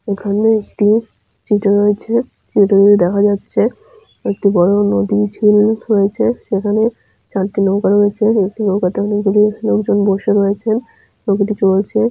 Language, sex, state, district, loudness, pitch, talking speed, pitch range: Bengali, female, West Bengal, Jalpaiguri, -14 LUFS, 205 Hz, 125 wpm, 200-215 Hz